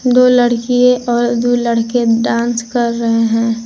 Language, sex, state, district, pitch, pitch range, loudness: Hindi, female, Jharkhand, Garhwa, 240 Hz, 230-245 Hz, -13 LUFS